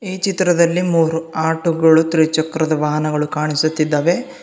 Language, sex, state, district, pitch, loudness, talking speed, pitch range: Kannada, male, Karnataka, Bidar, 160 Hz, -16 LUFS, 95 wpm, 155-175 Hz